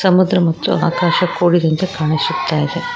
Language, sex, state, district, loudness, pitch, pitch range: Kannada, female, Karnataka, Koppal, -16 LUFS, 170 Hz, 160-180 Hz